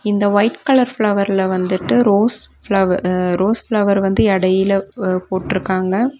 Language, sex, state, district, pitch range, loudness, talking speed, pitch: Tamil, female, Tamil Nadu, Nilgiris, 185-210 Hz, -16 LUFS, 115 wpm, 195 Hz